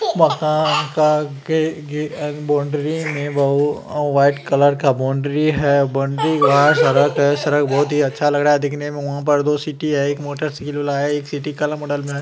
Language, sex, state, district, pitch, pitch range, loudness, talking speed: Magahi, male, Bihar, Gaya, 145 Hz, 140-150 Hz, -18 LUFS, 100 wpm